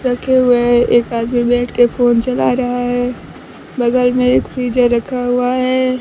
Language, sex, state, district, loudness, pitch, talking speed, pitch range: Hindi, female, Bihar, Kaimur, -14 LUFS, 245 Hz, 190 wpm, 240-250 Hz